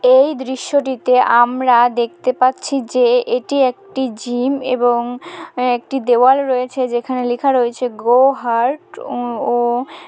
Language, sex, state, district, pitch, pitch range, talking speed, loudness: Bengali, female, West Bengal, Malda, 255 Hz, 245-270 Hz, 100 wpm, -16 LUFS